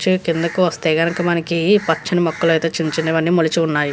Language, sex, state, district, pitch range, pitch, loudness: Telugu, female, Andhra Pradesh, Visakhapatnam, 160-175 Hz, 165 Hz, -17 LUFS